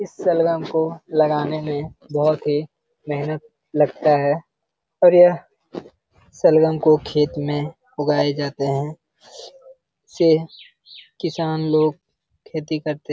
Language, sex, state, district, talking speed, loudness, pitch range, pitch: Hindi, male, Bihar, Jamui, 115 wpm, -20 LUFS, 150-165 Hz, 155 Hz